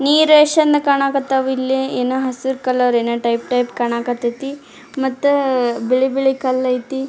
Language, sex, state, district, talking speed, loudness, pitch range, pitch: Kannada, female, Karnataka, Dharwad, 135 wpm, -17 LUFS, 245-275 Hz, 265 Hz